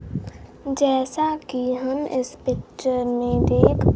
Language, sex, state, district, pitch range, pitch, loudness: Hindi, female, Bihar, Kaimur, 255-280 Hz, 260 Hz, -22 LUFS